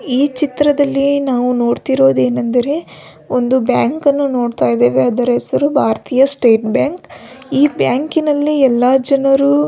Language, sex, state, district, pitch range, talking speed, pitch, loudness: Kannada, female, Karnataka, Belgaum, 245-285 Hz, 110 wpm, 265 Hz, -14 LUFS